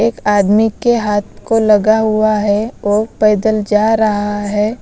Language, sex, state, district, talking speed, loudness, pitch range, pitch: Hindi, female, Bihar, West Champaran, 160 wpm, -14 LUFS, 210-220 Hz, 215 Hz